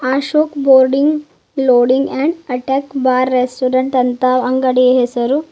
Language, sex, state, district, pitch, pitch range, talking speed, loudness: Kannada, female, Karnataka, Bidar, 260 Hz, 255-275 Hz, 100 wpm, -14 LUFS